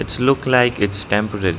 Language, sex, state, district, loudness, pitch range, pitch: English, male, Arunachal Pradesh, Lower Dibang Valley, -18 LUFS, 100-125 Hz, 105 Hz